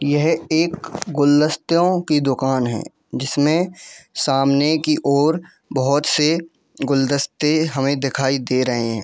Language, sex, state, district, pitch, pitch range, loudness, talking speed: Hindi, male, Jharkhand, Jamtara, 145 Hz, 135-160 Hz, -19 LUFS, 120 wpm